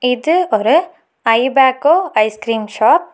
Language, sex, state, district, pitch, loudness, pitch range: Tamil, female, Tamil Nadu, Nilgiris, 250 Hz, -14 LUFS, 225-320 Hz